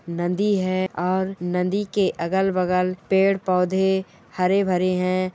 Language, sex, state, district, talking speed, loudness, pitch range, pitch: Hindi, female, Bihar, Bhagalpur, 100 wpm, -22 LUFS, 180-190 Hz, 185 Hz